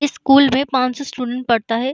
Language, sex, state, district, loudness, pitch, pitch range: Hindi, female, Uttar Pradesh, Deoria, -17 LUFS, 260 Hz, 250-275 Hz